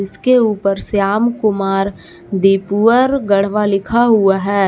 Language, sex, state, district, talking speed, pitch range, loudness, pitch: Hindi, female, Jharkhand, Garhwa, 115 wpm, 195-225 Hz, -14 LUFS, 200 Hz